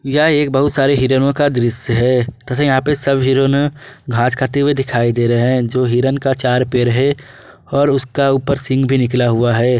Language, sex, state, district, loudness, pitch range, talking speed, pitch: Hindi, male, Jharkhand, Garhwa, -15 LUFS, 125-140 Hz, 210 wpm, 130 Hz